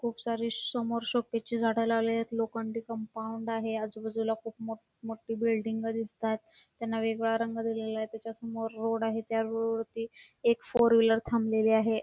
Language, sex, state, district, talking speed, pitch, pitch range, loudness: Marathi, female, Karnataka, Belgaum, 160 wpm, 225 Hz, 225-230 Hz, -31 LUFS